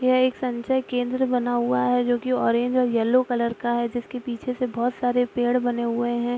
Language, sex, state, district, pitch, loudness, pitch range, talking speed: Hindi, female, Bihar, Araria, 245 Hz, -23 LUFS, 240-250 Hz, 225 wpm